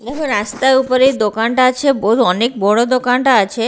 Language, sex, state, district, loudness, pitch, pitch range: Bengali, female, Bihar, Katihar, -14 LUFS, 250 Hz, 225-260 Hz